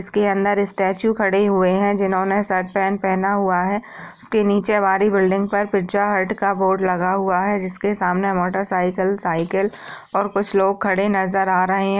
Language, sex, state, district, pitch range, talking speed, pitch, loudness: Hindi, female, Bihar, Purnia, 190-200 Hz, 190 wpm, 195 Hz, -19 LUFS